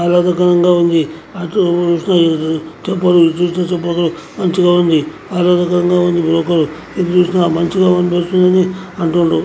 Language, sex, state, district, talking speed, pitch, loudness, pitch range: Telugu, male, Andhra Pradesh, Anantapur, 30 wpm, 175 Hz, -14 LUFS, 170-180 Hz